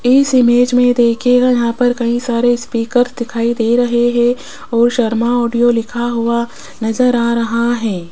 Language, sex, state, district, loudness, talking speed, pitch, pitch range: Hindi, female, Rajasthan, Jaipur, -14 LUFS, 165 wpm, 240 Hz, 235-245 Hz